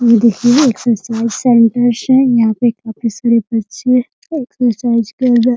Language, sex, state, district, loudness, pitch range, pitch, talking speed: Hindi, female, Bihar, Muzaffarpur, -13 LUFS, 230-250 Hz, 235 Hz, 130 wpm